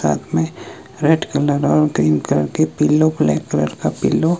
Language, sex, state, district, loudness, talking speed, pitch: Hindi, male, Himachal Pradesh, Shimla, -17 LUFS, 190 wpm, 145 Hz